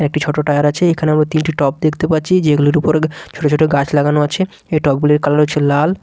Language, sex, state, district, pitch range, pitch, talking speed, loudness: Bengali, male, Bihar, Katihar, 145-155 Hz, 150 Hz, 230 wpm, -14 LUFS